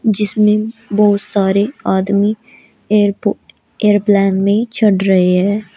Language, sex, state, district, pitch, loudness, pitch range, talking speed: Hindi, female, Uttar Pradesh, Shamli, 205 Hz, -14 LUFS, 200-215 Hz, 105 wpm